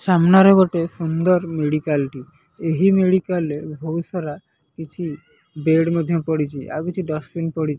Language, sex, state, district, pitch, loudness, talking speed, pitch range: Odia, male, Odisha, Nuapada, 165 Hz, -19 LUFS, 145 wpm, 155-180 Hz